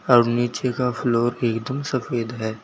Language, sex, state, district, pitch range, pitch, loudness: Hindi, male, Uttar Pradesh, Saharanpur, 115-125 Hz, 120 Hz, -22 LUFS